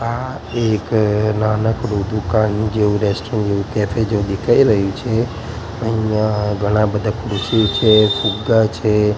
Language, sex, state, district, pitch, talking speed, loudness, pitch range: Gujarati, male, Gujarat, Gandhinagar, 110 Hz, 110 wpm, -17 LUFS, 105-110 Hz